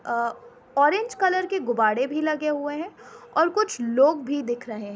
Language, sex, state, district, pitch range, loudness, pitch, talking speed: Hindi, female, Uttar Pradesh, Etah, 240-335 Hz, -24 LUFS, 290 Hz, 195 wpm